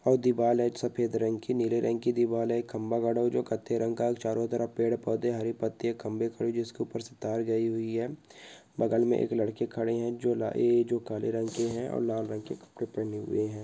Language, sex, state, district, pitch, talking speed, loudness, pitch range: Hindi, male, West Bengal, Purulia, 115 Hz, 235 wpm, -30 LUFS, 115-120 Hz